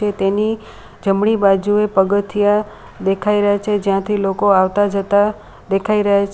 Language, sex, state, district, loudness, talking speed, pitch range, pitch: Gujarati, female, Gujarat, Valsad, -16 LUFS, 130 wpm, 195-210 Hz, 205 Hz